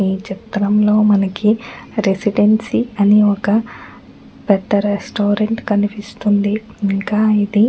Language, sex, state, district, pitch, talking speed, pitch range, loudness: Telugu, female, Andhra Pradesh, Anantapur, 210 Hz, 95 wpm, 205-215 Hz, -16 LUFS